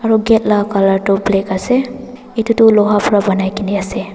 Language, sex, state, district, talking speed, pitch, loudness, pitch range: Nagamese, female, Nagaland, Dimapur, 200 wpm, 210 Hz, -14 LUFS, 195-225 Hz